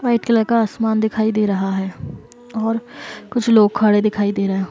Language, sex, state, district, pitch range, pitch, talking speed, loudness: Hindi, female, Uttar Pradesh, Varanasi, 205-230 Hz, 220 Hz, 205 wpm, -18 LUFS